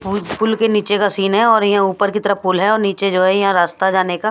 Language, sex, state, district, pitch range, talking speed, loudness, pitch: Hindi, female, Bihar, Katihar, 190-210 Hz, 290 wpm, -15 LUFS, 200 Hz